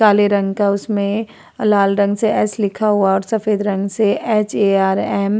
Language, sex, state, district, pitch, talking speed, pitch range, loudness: Hindi, female, Uttar Pradesh, Muzaffarnagar, 205 Hz, 210 wpm, 200-215 Hz, -17 LUFS